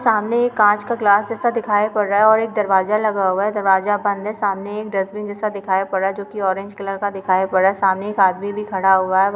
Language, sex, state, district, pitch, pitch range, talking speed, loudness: Hindi, female, Bihar, Lakhisarai, 205 Hz, 195-210 Hz, 280 wpm, -18 LUFS